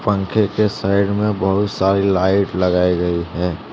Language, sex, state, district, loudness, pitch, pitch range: Hindi, male, Jharkhand, Deoghar, -17 LUFS, 95 Hz, 90-105 Hz